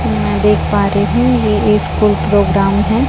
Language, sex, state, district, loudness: Hindi, female, Chhattisgarh, Raipur, -13 LUFS